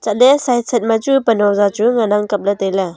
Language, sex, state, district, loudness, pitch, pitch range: Wancho, female, Arunachal Pradesh, Longding, -14 LUFS, 220 Hz, 205-240 Hz